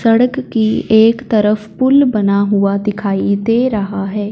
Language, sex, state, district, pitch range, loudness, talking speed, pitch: Hindi, female, Punjab, Fazilka, 200-230 Hz, -14 LUFS, 155 wpm, 215 Hz